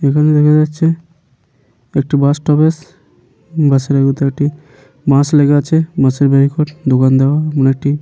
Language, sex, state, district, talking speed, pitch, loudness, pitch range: Bengali, male, West Bengal, Paschim Medinipur, 140 wpm, 145 Hz, -13 LUFS, 135-155 Hz